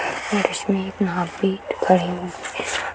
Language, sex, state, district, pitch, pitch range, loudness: Hindi, female, Uttar Pradesh, Hamirpur, 190 Hz, 180-195 Hz, -22 LUFS